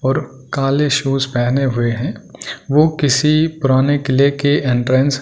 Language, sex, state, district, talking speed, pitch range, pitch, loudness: Hindi, male, Delhi, New Delhi, 150 wpm, 130-145 Hz, 135 Hz, -16 LUFS